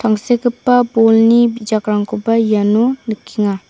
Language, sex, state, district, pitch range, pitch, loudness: Garo, female, Meghalaya, South Garo Hills, 215-240 Hz, 225 Hz, -14 LUFS